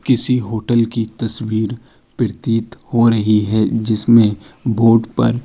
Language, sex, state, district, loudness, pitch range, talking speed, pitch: Hindi, male, Uttar Pradesh, Jalaun, -16 LUFS, 110-120 Hz, 130 wpm, 115 Hz